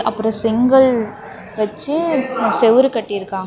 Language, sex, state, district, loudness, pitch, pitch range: Tamil, female, Tamil Nadu, Namakkal, -16 LUFS, 225 Hz, 215-260 Hz